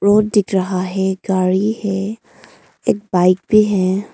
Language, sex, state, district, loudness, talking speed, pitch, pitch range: Hindi, female, Arunachal Pradesh, Longding, -17 LUFS, 145 wpm, 195 Hz, 185-205 Hz